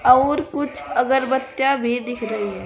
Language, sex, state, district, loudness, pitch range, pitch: Hindi, female, Uttar Pradesh, Saharanpur, -20 LUFS, 245-275 Hz, 265 Hz